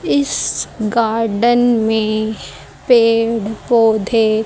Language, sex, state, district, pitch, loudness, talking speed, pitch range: Hindi, female, Haryana, Jhajjar, 220 Hz, -15 LUFS, 65 wpm, 215-230 Hz